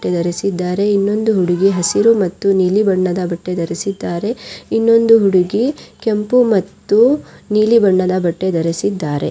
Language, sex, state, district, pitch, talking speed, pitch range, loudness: Kannada, female, Karnataka, Raichur, 195 Hz, 110 wpm, 180-220 Hz, -15 LUFS